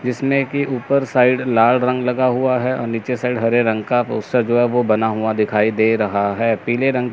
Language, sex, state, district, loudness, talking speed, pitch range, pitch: Hindi, male, Chandigarh, Chandigarh, -17 LUFS, 225 wpm, 110-125 Hz, 125 Hz